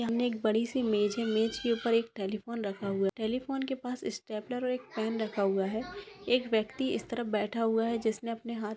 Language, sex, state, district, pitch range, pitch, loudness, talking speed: Hindi, female, Maharashtra, Sindhudurg, 215-240 Hz, 225 Hz, -32 LUFS, 220 wpm